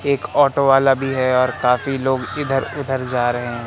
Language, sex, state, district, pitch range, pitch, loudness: Hindi, male, Madhya Pradesh, Katni, 125-135 Hz, 135 Hz, -18 LUFS